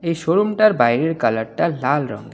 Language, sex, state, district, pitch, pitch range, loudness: Bengali, male, West Bengal, Alipurduar, 160 Hz, 130-170 Hz, -18 LUFS